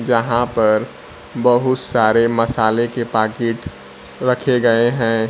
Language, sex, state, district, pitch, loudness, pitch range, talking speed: Hindi, male, Bihar, Kaimur, 115 Hz, -17 LUFS, 110-120 Hz, 115 wpm